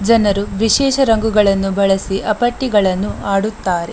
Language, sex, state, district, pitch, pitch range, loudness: Kannada, female, Karnataka, Dakshina Kannada, 205 Hz, 195-225 Hz, -15 LUFS